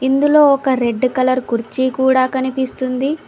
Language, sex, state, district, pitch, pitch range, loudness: Telugu, female, Telangana, Mahabubabad, 260 Hz, 255-265 Hz, -16 LUFS